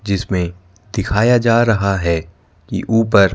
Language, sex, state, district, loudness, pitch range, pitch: Hindi, male, Madhya Pradesh, Bhopal, -16 LUFS, 90-115 Hz, 100 Hz